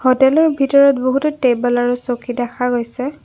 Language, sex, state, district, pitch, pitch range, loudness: Assamese, female, Assam, Kamrup Metropolitan, 255 Hz, 245-275 Hz, -16 LUFS